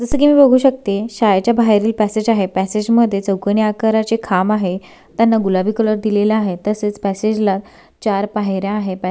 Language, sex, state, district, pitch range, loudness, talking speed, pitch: Marathi, female, Maharashtra, Sindhudurg, 200-225 Hz, -16 LUFS, 180 wpm, 210 Hz